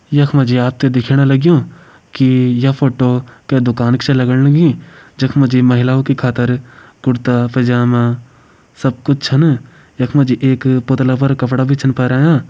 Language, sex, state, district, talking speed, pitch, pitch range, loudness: Garhwali, male, Uttarakhand, Uttarkashi, 175 wpm, 130 Hz, 125-140 Hz, -13 LUFS